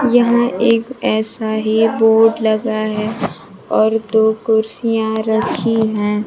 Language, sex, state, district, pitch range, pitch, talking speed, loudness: Hindi, female, Bihar, Kaimur, 220-225 Hz, 220 Hz, 115 wpm, -16 LUFS